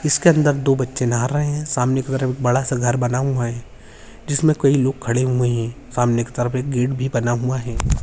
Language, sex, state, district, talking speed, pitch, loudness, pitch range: Hindi, male, Rajasthan, Nagaur, 215 wpm, 125 Hz, -19 LUFS, 120-135 Hz